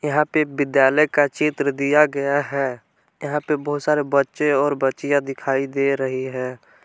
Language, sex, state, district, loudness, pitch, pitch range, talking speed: Hindi, male, Jharkhand, Palamu, -20 LUFS, 140 Hz, 135-150 Hz, 165 wpm